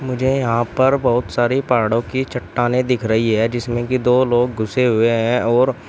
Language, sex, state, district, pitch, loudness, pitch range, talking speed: Hindi, male, Uttar Pradesh, Shamli, 120 Hz, -17 LUFS, 115-130 Hz, 195 wpm